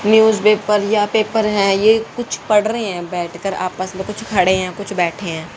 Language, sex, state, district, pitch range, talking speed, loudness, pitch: Hindi, female, Haryana, Rohtak, 185-215 Hz, 195 wpm, -17 LUFS, 205 Hz